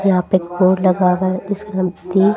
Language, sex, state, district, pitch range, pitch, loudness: Hindi, female, Haryana, Charkhi Dadri, 185-195 Hz, 185 Hz, -17 LUFS